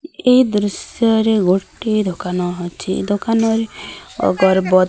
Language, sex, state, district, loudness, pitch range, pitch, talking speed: Odia, female, Odisha, Sambalpur, -17 LUFS, 185-225 Hz, 205 Hz, 100 wpm